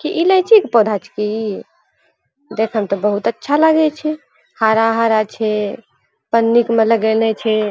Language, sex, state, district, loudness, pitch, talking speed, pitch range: Angika, female, Bihar, Purnia, -16 LUFS, 225 Hz, 155 wpm, 215-290 Hz